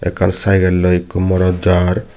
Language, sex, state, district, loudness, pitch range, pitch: Chakma, male, Tripura, Dhalai, -14 LUFS, 90-95 Hz, 90 Hz